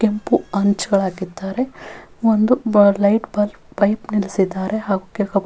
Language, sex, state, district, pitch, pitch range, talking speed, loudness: Kannada, female, Karnataka, Bellary, 205 Hz, 195-215 Hz, 110 wpm, -19 LUFS